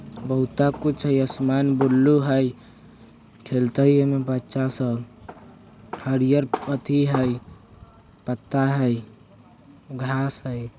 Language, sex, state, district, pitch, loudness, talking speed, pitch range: Bajjika, male, Bihar, Vaishali, 130 Hz, -23 LUFS, 100 wpm, 120-140 Hz